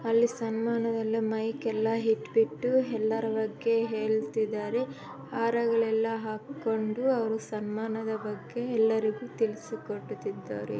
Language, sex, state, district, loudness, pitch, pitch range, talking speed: Kannada, female, Karnataka, Mysore, -30 LUFS, 225 Hz, 220-230 Hz, 90 wpm